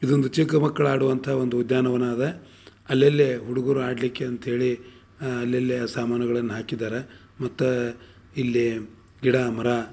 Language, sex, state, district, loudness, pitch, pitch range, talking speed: Kannada, male, Karnataka, Dharwad, -24 LUFS, 125 Hz, 120-130 Hz, 135 wpm